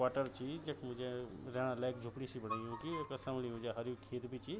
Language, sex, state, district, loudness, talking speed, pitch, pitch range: Garhwali, male, Uttarakhand, Tehri Garhwal, -43 LUFS, 235 wpm, 125 Hz, 125-135 Hz